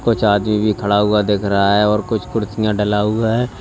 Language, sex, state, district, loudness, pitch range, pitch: Hindi, male, Uttar Pradesh, Lalitpur, -16 LUFS, 105-110 Hz, 105 Hz